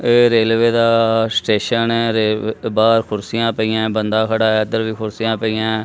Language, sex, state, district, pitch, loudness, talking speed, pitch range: Punjabi, male, Punjab, Kapurthala, 110 Hz, -16 LUFS, 145 wpm, 110-115 Hz